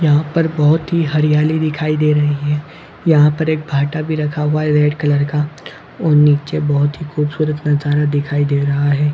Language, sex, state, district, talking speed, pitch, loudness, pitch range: Hindi, male, Chhattisgarh, Bilaspur, 195 wpm, 150 Hz, -16 LUFS, 145-155 Hz